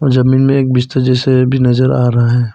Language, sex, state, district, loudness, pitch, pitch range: Hindi, male, Arunachal Pradesh, Papum Pare, -12 LUFS, 130 Hz, 125-130 Hz